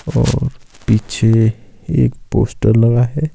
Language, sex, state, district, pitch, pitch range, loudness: Hindi, male, Himachal Pradesh, Shimla, 110 Hz, 105-115 Hz, -15 LUFS